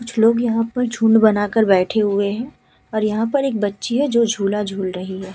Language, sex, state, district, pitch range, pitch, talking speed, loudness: Hindi, female, Uttar Pradesh, Hamirpur, 200-235 Hz, 220 Hz, 225 wpm, -18 LUFS